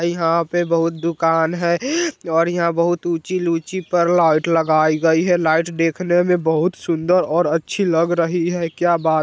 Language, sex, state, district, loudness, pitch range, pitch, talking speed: Bajjika, male, Bihar, Vaishali, -18 LUFS, 165-175 Hz, 170 Hz, 180 wpm